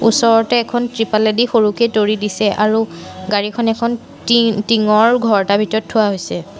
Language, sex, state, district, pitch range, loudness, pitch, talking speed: Assamese, female, Assam, Sonitpur, 210-235 Hz, -15 LUFS, 220 Hz, 135 wpm